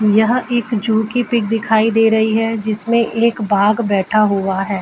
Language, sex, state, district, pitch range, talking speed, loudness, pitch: Hindi, female, Jharkhand, Jamtara, 210-230 Hz, 185 wpm, -15 LUFS, 220 Hz